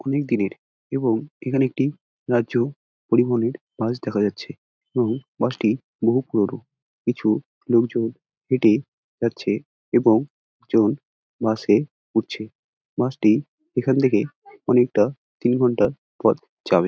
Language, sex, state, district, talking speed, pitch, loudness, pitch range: Bengali, male, West Bengal, Dakshin Dinajpur, 115 wpm, 120 Hz, -22 LUFS, 110-135 Hz